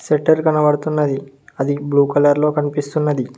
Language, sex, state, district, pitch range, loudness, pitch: Telugu, male, Telangana, Mahabubabad, 140-150 Hz, -17 LUFS, 145 Hz